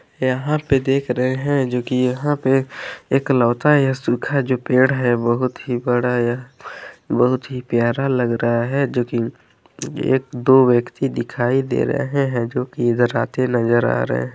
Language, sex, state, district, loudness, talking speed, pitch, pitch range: Hindi, male, Chhattisgarh, Balrampur, -19 LUFS, 175 wpm, 125 Hz, 120-135 Hz